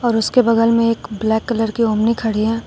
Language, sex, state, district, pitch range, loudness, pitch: Hindi, female, Uttar Pradesh, Shamli, 220-230 Hz, -17 LUFS, 230 Hz